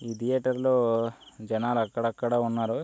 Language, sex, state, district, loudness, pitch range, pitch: Telugu, male, Andhra Pradesh, Guntur, -27 LUFS, 115-125 Hz, 115 Hz